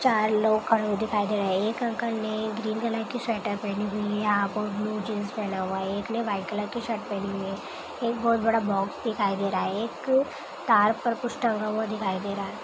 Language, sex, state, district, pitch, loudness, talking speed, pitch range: Hindi, female, Bihar, Saharsa, 215 Hz, -27 LUFS, 235 wpm, 205-225 Hz